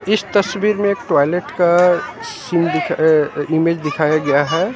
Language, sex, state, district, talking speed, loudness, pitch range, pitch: Hindi, male, Haryana, Jhajjar, 165 wpm, -16 LUFS, 155-195 Hz, 170 Hz